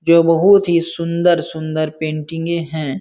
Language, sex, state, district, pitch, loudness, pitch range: Hindi, male, Uttar Pradesh, Jalaun, 165 Hz, -16 LUFS, 155-170 Hz